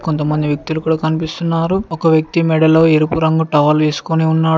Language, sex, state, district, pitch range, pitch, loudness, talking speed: Telugu, male, Telangana, Mahabubabad, 155-160 Hz, 160 Hz, -15 LUFS, 155 wpm